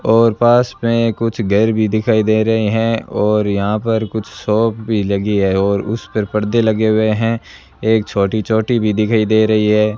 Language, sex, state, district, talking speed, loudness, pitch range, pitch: Hindi, male, Rajasthan, Bikaner, 200 wpm, -15 LUFS, 105-115 Hz, 110 Hz